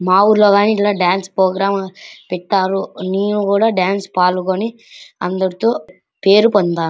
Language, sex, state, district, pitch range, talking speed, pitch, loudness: Telugu, male, Andhra Pradesh, Anantapur, 185-205 Hz, 140 wpm, 195 Hz, -15 LUFS